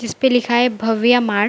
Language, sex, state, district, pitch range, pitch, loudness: Hindi, female, Bihar, Samastipur, 225-245 Hz, 235 Hz, -16 LUFS